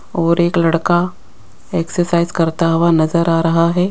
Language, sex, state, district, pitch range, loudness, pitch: Hindi, female, Rajasthan, Jaipur, 165-170 Hz, -15 LUFS, 170 Hz